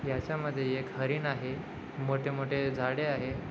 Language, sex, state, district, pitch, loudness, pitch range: Marathi, male, Maharashtra, Dhule, 135 Hz, -33 LUFS, 130-145 Hz